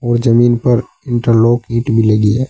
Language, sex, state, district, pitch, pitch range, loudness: Hindi, male, Uttar Pradesh, Saharanpur, 120 Hz, 115-120 Hz, -13 LUFS